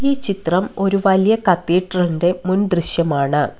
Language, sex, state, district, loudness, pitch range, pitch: Malayalam, female, Kerala, Kollam, -17 LUFS, 170-195 Hz, 185 Hz